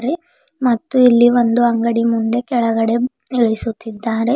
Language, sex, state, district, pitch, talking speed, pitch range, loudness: Kannada, female, Karnataka, Bidar, 235 Hz, 95 wpm, 230-250 Hz, -16 LUFS